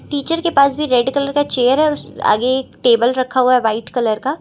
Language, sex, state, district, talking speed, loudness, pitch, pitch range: Hindi, female, Uttar Pradesh, Lucknow, 285 wpm, -16 LUFS, 260 Hz, 245-285 Hz